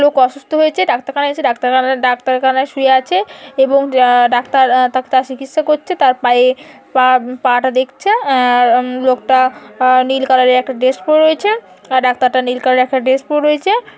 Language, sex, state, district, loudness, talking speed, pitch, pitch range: Bengali, female, West Bengal, Purulia, -13 LUFS, 165 wpm, 260 Hz, 255-285 Hz